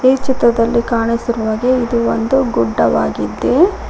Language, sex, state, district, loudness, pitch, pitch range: Kannada, female, Karnataka, Koppal, -15 LUFS, 235 Hz, 230-255 Hz